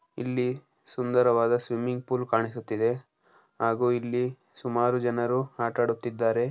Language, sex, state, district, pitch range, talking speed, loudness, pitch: Kannada, male, Karnataka, Dharwad, 115-125 Hz, 90 wpm, -27 LUFS, 120 Hz